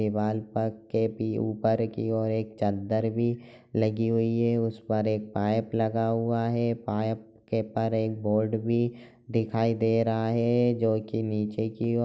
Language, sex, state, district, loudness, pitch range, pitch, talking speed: Hindi, male, Chhattisgarh, Raigarh, -28 LUFS, 110-115 Hz, 110 Hz, 170 wpm